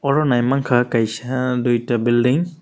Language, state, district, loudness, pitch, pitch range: Kokborok, Tripura, West Tripura, -18 LUFS, 125 Hz, 120-135 Hz